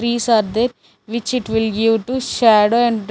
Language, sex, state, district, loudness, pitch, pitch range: English, female, Chandigarh, Chandigarh, -17 LUFS, 230 Hz, 220-240 Hz